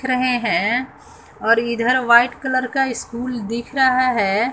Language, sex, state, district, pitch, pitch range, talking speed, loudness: Hindi, female, Bihar, West Champaran, 245 Hz, 235-255 Hz, 145 wpm, -18 LUFS